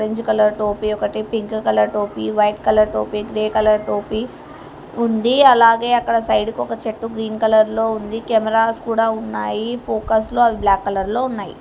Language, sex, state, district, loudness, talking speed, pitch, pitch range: Telugu, female, Telangana, Hyderabad, -18 LUFS, 170 wpm, 220 Hz, 210-230 Hz